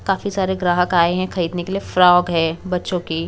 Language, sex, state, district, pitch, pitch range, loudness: Hindi, female, Bihar, West Champaran, 180 Hz, 175-190 Hz, -18 LUFS